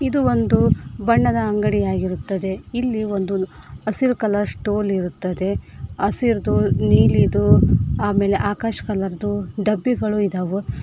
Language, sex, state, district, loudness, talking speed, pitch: Kannada, female, Karnataka, Koppal, -20 LUFS, 105 wpm, 195 Hz